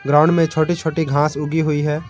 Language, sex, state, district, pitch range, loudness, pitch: Hindi, male, Jharkhand, Garhwa, 150-160 Hz, -18 LUFS, 155 Hz